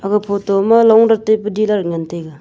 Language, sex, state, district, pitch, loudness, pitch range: Wancho, female, Arunachal Pradesh, Longding, 210 Hz, -14 LUFS, 190-220 Hz